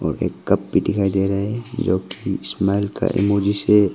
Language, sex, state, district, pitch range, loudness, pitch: Hindi, male, Arunachal Pradesh, Longding, 95-105 Hz, -20 LUFS, 100 Hz